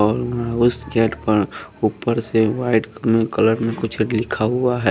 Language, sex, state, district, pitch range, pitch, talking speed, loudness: Hindi, male, Haryana, Rohtak, 110-120 Hz, 115 Hz, 185 wpm, -20 LUFS